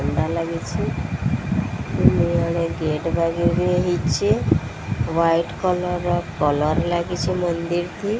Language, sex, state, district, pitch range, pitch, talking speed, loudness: Odia, female, Odisha, Sambalpur, 145-175 Hz, 165 Hz, 45 wpm, -21 LUFS